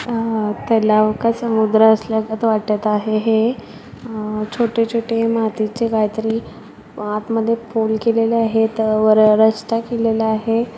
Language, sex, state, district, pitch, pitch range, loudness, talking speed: Marathi, female, Maharashtra, Solapur, 220 Hz, 215-230 Hz, -17 LUFS, 135 wpm